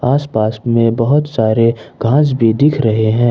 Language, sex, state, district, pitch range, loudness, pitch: Hindi, male, Jharkhand, Ranchi, 110-140 Hz, -14 LUFS, 115 Hz